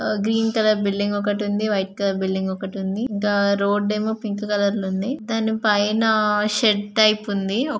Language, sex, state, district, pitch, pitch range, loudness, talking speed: Telugu, female, Andhra Pradesh, Guntur, 205 Hz, 200-220 Hz, -21 LUFS, 155 wpm